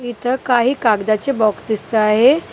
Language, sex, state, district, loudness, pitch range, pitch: Marathi, female, Maharashtra, Gondia, -16 LUFS, 215-255 Hz, 240 Hz